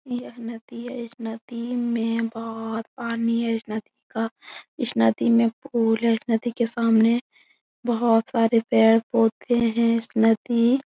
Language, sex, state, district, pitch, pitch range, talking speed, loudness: Hindi, female, Uttar Pradesh, Etah, 230 Hz, 225-235 Hz, 160 wpm, -23 LUFS